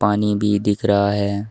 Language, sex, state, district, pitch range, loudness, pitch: Hindi, male, Uttar Pradesh, Shamli, 100-105 Hz, -19 LUFS, 105 Hz